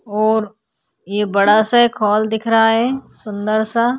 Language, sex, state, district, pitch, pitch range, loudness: Hindi, female, Uttar Pradesh, Hamirpur, 220 Hz, 210-230 Hz, -15 LUFS